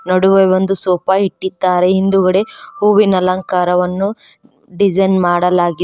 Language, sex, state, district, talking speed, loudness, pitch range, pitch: Kannada, female, Karnataka, Koppal, 90 wpm, -13 LUFS, 180-195 Hz, 190 Hz